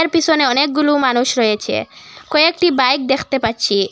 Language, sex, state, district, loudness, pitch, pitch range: Bengali, female, Assam, Hailakandi, -15 LUFS, 270 Hz, 245-305 Hz